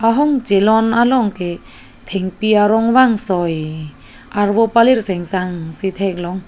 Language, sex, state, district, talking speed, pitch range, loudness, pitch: Karbi, female, Assam, Karbi Anglong, 120 wpm, 180-225 Hz, -16 LUFS, 200 Hz